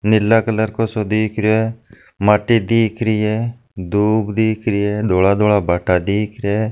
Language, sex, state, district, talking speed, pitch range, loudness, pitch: Marwari, male, Rajasthan, Nagaur, 185 wpm, 105-110 Hz, -17 LUFS, 110 Hz